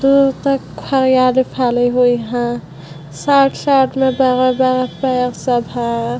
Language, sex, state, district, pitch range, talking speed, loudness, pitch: Hindi, female, Bihar, Vaishali, 240-265 Hz, 95 wpm, -15 LUFS, 255 Hz